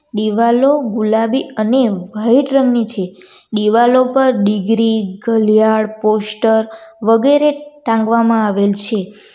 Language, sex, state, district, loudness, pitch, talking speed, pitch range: Gujarati, female, Gujarat, Valsad, -14 LUFS, 225 Hz, 95 wpm, 215-250 Hz